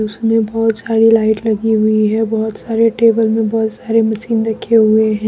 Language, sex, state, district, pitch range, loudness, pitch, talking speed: Hindi, female, Jharkhand, Deoghar, 220-225 Hz, -14 LUFS, 225 Hz, 195 wpm